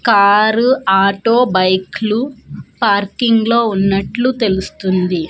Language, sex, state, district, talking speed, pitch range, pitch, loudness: Telugu, female, Andhra Pradesh, Manyam, 80 wpm, 195-235 Hz, 205 Hz, -14 LUFS